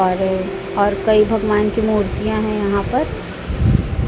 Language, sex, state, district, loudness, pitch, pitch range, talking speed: Hindi, female, Chhattisgarh, Raipur, -18 LUFS, 205 Hz, 190-215 Hz, 120 wpm